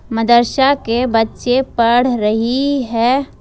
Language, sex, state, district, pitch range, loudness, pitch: Hindi, female, Jharkhand, Ranchi, 230-265 Hz, -15 LUFS, 240 Hz